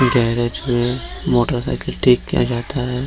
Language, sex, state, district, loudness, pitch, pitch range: Hindi, male, Bihar, Gaya, -18 LUFS, 125 Hz, 120-125 Hz